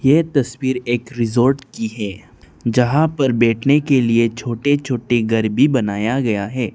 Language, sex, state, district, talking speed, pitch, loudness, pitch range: Hindi, male, Arunachal Pradesh, Lower Dibang Valley, 160 wpm, 120 Hz, -18 LUFS, 115-135 Hz